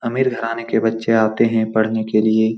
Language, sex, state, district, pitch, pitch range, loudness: Hindi, male, Bihar, Supaul, 110 Hz, 110-115 Hz, -18 LUFS